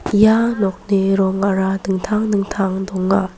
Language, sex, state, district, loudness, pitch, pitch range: Garo, female, Meghalaya, West Garo Hills, -17 LUFS, 195 Hz, 190-205 Hz